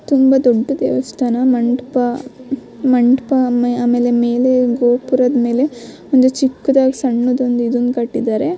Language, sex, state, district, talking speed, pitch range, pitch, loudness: Kannada, female, Karnataka, Dakshina Kannada, 120 wpm, 240-260 Hz, 250 Hz, -15 LUFS